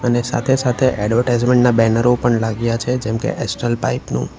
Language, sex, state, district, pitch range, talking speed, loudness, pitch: Gujarati, male, Gujarat, Valsad, 115-125 Hz, 175 wpm, -17 LUFS, 120 Hz